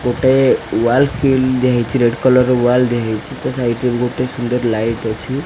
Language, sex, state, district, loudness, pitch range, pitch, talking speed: Odia, male, Odisha, Khordha, -15 LUFS, 120-130 Hz, 125 Hz, 200 wpm